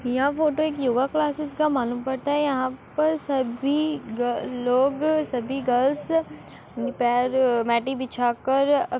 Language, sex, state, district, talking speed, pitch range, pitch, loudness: Hindi, female, Uttar Pradesh, Muzaffarnagar, 125 wpm, 250-295 Hz, 265 Hz, -24 LUFS